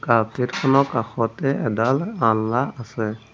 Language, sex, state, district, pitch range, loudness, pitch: Assamese, male, Assam, Sonitpur, 110-135 Hz, -21 LUFS, 115 Hz